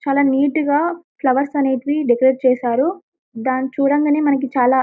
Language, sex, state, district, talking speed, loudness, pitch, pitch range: Telugu, female, Telangana, Karimnagar, 150 wpm, -17 LUFS, 275 Hz, 260-295 Hz